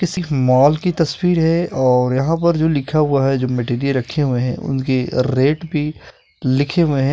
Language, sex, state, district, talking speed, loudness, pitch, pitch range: Hindi, male, Bihar, Purnia, 195 wpm, -17 LUFS, 140 Hz, 130-160 Hz